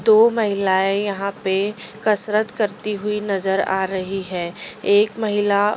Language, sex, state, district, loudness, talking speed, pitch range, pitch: Hindi, female, Delhi, New Delhi, -19 LUFS, 135 wpm, 195-215 Hz, 205 Hz